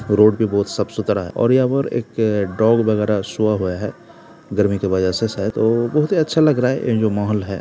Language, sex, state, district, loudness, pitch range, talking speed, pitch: Hindi, male, Uttar Pradesh, Jalaun, -18 LUFS, 100-115 Hz, 235 wpm, 110 Hz